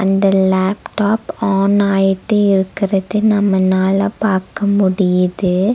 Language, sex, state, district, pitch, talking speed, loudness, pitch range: Tamil, female, Tamil Nadu, Nilgiris, 195 Hz, 85 wpm, -15 LUFS, 190-205 Hz